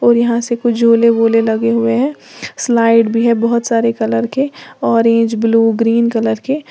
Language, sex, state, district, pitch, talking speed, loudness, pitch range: Hindi, female, Uttar Pradesh, Lalitpur, 230 Hz, 190 wpm, -13 LUFS, 230-235 Hz